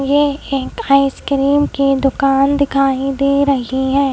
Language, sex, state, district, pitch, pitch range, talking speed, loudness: Hindi, female, Madhya Pradesh, Bhopal, 275 Hz, 270-280 Hz, 130 wpm, -15 LUFS